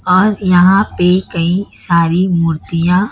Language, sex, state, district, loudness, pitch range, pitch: Hindi, female, Chhattisgarh, Raipur, -13 LUFS, 170-185 Hz, 180 Hz